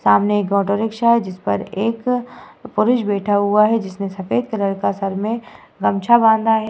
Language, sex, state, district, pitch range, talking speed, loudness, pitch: Hindi, female, Uttar Pradesh, Muzaffarnagar, 200-230 Hz, 190 wpm, -18 LUFS, 215 Hz